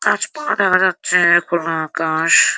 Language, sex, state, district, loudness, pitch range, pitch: Bengali, female, West Bengal, Jhargram, -16 LUFS, 165-185 Hz, 170 Hz